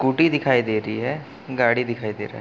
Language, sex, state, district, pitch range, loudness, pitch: Hindi, male, Bihar, East Champaran, 110-135 Hz, -22 LUFS, 125 Hz